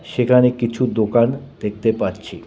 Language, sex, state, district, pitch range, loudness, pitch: Bengali, male, West Bengal, Cooch Behar, 110-125 Hz, -18 LUFS, 120 Hz